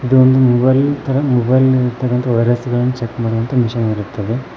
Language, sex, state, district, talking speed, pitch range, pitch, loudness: Kannada, male, Karnataka, Koppal, 155 wpm, 120-130 Hz, 125 Hz, -15 LUFS